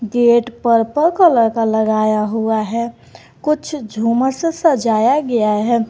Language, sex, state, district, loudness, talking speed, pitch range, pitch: Hindi, female, Jharkhand, Garhwa, -16 LUFS, 130 wpm, 220-270 Hz, 235 Hz